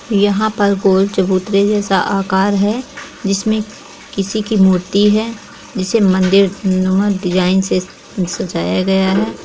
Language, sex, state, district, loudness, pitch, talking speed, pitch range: Hindi, female, Bihar, East Champaran, -15 LUFS, 195 Hz, 135 wpm, 190-210 Hz